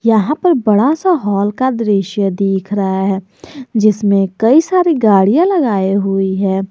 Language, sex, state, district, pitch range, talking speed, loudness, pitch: Hindi, male, Jharkhand, Garhwa, 195-270 Hz, 150 wpm, -13 LUFS, 210 Hz